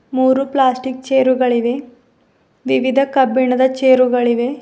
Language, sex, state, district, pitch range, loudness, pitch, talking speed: Kannada, female, Karnataka, Bidar, 250-265 Hz, -15 LUFS, 260 Hz, 80 wpm